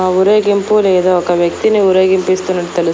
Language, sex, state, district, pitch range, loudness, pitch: Telugu, female, Andhra Pradesh, Annamaya, 180-200 Hz, -12 LUFS, 185 Hz